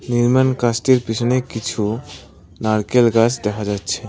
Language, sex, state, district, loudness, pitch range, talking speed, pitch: Bengali, male, West Bengal, Cooch Behar, -18 LUFS, 105-125 Hz, 115 wpm, 115 Hz